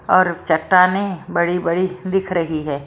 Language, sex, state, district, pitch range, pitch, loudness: Hindi, female, Maharashtra, Mumbai Suburban, 170-185 Hz, 180 Hz, -18 LUFS